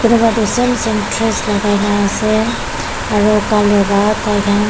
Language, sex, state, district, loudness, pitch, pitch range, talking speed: Nagamese, female, Nagaland, Kohima, -14 LUFS, 210 Hz, 205-220 Hz, 130 wpm